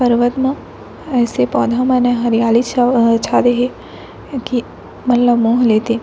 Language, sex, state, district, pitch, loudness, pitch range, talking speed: Chhattisgarhi, female, Chhattisgarh, Raigarh, 245 Hz, -15 LUFS, 230-250 Hz, 140 wpm